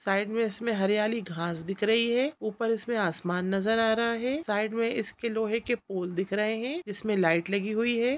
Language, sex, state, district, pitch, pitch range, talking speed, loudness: Hindi, female, Chhattisgarh, Raigarh, 220 Hz, 195-230 Hz, 215 wpm, -28 LUFS